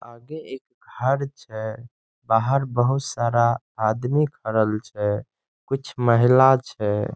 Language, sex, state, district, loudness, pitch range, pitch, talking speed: Maithili, male, Bihar, Saharsa, -22 LUFS, 110-135 Hz, 120 Hz, 110 wpm